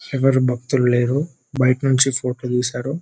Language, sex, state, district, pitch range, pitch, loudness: Telugu, male, Telangana, Nalgonda, 125-135 Hz, 130 Hz, -19 LUFS